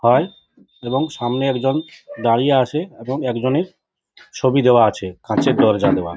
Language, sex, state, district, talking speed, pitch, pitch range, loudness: Bengali, male, West Bengal, Jhargram, 135 wpm, 125 Hz, 115-135 Hz, -18 LUFS